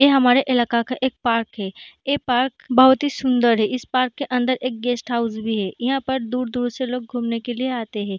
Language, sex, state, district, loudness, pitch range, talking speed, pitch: Hindi, female, Bihar, Darbhanga, -21 LUFS, 235-260 Hz, 270 wpm, 245 Hz